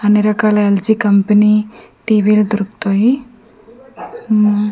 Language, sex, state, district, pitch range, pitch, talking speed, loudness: Telugu, female, Andhra Pradesh, Manyam, 210-220 Hz, 210 Hz, 90 wpm, -13 LUFS